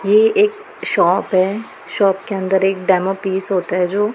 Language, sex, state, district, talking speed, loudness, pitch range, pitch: Hindi, female, Punjab, Pathankot, 190 wpm, -17 LUFS, 190-210 Hz, 195 Hz